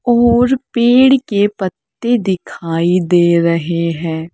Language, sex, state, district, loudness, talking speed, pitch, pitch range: Hindi, female, Uttar Pradesh, Saharanpur, -14 LUFS, 110 wpm, 190 Hz, 170-240 Hz